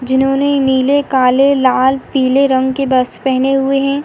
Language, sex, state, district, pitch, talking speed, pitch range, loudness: Hindi, female, Uttar Pradesh, Hamirpur, 270 Hz, 165 wpm, 260-275 Hz, -13 LUFS